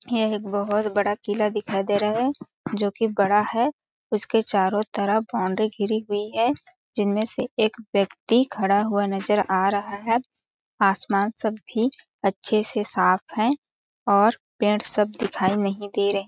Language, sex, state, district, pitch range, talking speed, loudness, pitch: Hindi, female, Chhattisgarh, Balrampur, 200-225 Hz, 160 wpm, -23 LUFS, 210 Hz